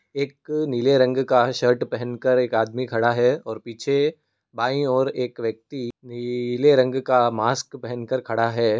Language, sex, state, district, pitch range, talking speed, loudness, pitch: Hindi, male, Uttar Pradesh, Muzaffarnagar, 120-130 Hz, 165 wpm, -22 LUFS, 125 Hz